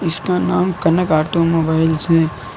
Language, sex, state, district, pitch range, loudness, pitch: Hindi, male, Uttar Pradesh, Lucknow, 160-175 Hz, -16 LUFS, 165 Hz